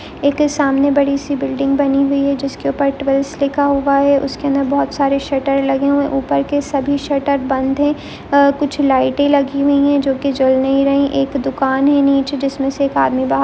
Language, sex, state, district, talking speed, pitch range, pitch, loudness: Hindi, female, Andhra Pradesh, Chittoor, 215 wpm, 275-280 Hz, 280 Hz, -15 LUFS